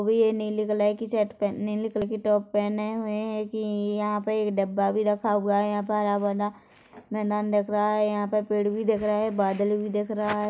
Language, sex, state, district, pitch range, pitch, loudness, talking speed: Hindi, male, Chhattisgarh, Korba, 205-215 Hz, 210 Hz, -26 LUFS, 230 wpm